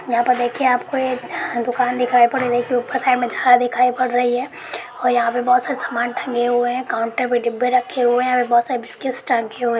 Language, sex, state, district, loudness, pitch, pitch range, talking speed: Hindi, female, Jharkhand, Jamtara, -18 LUFS, 245 Hz, 240-250 Hz, 245 wpm